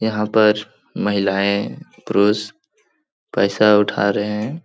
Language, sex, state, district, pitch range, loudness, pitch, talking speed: Hindi, male, Bihar, Jahanabad, 105-110 Hz, -18 LUFS, 105 Hz, 115 wpm